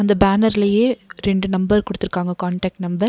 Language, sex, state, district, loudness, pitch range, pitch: Tamil, female, Tamil Nadu, Nilgiris, -19 LUFS, 185-205 Hz, 200 Hz